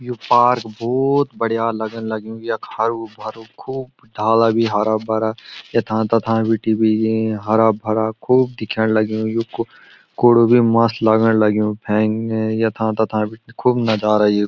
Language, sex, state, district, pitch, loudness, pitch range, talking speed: Garhwali, male, Uttarakhand, Uttarkashi, 110 Hz, -18 LUFS, 110-115 Hz, 155 wpm